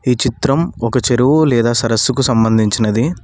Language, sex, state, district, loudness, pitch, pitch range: Telugu, male, Telangana, Mahabubabad, -14 LUFS, 120 Hz, 115-135 Hz